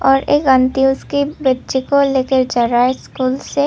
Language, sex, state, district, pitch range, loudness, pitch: Hindi, female, Tripura, Unakoti, 255-275 Hz, -15 LUFS, 265 Hz